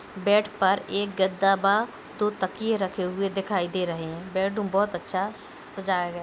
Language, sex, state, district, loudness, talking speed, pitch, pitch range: Hindi, female, Uttar Pradesh, Hamirpur, -26 LUFS, 185 wpm, 195 Hz, 185-205 Hz